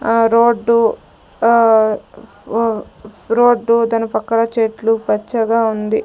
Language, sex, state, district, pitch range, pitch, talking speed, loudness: Telugu, female, Andhra Pradesh, Sri Satya Sai, 220-230 Hz, 230 Hz, 100 wpm, -15 LUFS